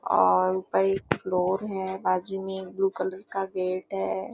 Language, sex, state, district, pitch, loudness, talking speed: Hindi, female, Maharashtra, Nagpur, 185 Hz, -27 LUFS, 180 wpm